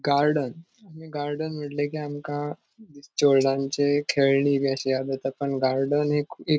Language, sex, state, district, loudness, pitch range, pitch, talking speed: Konkani, male, Goa, North and South Goa, -25 LUFS, 135-150 Hz, 145 Hz, 155 wpm